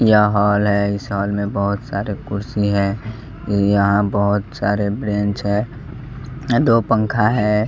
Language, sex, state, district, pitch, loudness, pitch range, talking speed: Hindi, male, Bihar, West Champaran, 105 Hz, -18 LUFS, 100-115 Hz, 140 wpm